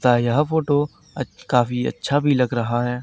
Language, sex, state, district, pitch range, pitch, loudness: Hindi, male, Haryana, Charkhi Dadri, 120-145 Hz, 125 Hz, -21 LUFS